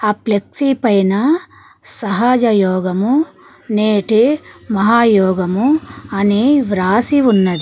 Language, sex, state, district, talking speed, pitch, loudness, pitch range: Telugu, female, Telangana, Mahabubabad, 70 wpm, 220 Hz, -14 LUFS, 200-265 Hz